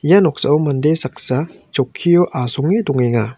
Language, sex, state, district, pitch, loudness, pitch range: Garo, male, Meghalaya, West Garo Hills, 150 Hz, -16 LUFS, 130-170 Hz